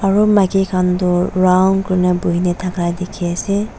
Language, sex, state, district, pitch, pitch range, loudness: Nagamese, female, Nagaland, Dimapur, 185 Hz, 180-195 Hz, -16 LUFS